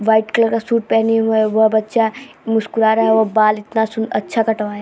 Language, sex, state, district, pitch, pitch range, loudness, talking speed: Hindi, female, Bihar, Vaishali, 220 Hz, 220-225 Hz, -16 LUFS, 235 wpm